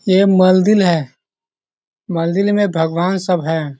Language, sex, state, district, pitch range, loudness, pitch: Hindi, male, Bihar, Sitamarhi, 165-195 Hz, -15 LUFS, 185 Hz